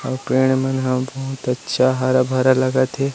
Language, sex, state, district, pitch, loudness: Chhattisgarhi, male, Chhattisgarh, Rajnandgaon, 130 Hz, -19 LUFS